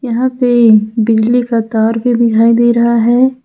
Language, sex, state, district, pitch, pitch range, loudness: Hindi, female, Jharkhand, Ranchi, 235 Hz, 225-245 Hz, -11 LUFS